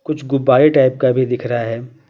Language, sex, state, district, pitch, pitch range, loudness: Hindi, male, Bihar, Patna, 130 Hz, 120-140 Hz, -15 LUFS